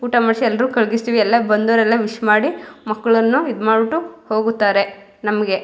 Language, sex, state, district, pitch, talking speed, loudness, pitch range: Kannada, female, Karnataka, Mysore, 225 Hz, 140 wpm, -17 LUFS, 210-235 Hz